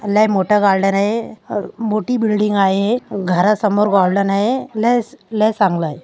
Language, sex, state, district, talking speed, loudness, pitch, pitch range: Marathi, female, Maharashtra, Aurangabad, 160 wpm, -16 LUFS, 210 Hz, 195-220 Hz